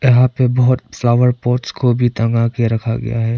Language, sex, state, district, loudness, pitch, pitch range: Hindi, male, Arunachal Pradesh, Papum Pare, -15 LUFS, 120 Hz, 115-125 Hz